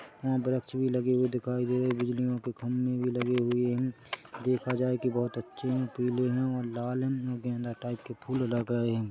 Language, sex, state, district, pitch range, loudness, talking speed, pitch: Hindi, male, Chhattisgarh, Korba, 120-125 Hz, -31 LUFS, 225 wpm, 125 Hz